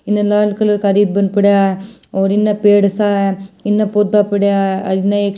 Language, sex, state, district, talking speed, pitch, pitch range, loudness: Hindi, female, Rajasthan, Churu, 165 wpm, 205 Hz, 195-210 Hz, -14 LUFS